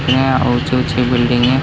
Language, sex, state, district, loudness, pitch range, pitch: Hindi, male, Bihar, Gaya, -15 LUFS, 120-130 Hz, 125 Hz